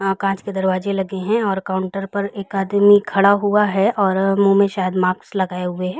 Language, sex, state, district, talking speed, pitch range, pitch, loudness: Hindi, female, Uttar Pradesh, Jalaun, 220 wpm, 190-200 Hz, 195 Hz, -18 LUFS